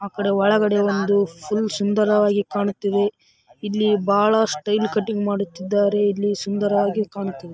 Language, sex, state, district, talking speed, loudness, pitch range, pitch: Kannada, female, Karnataka, Raichur, 120 wpm, -20 LUFS, 200-210 Hz, 205 Hz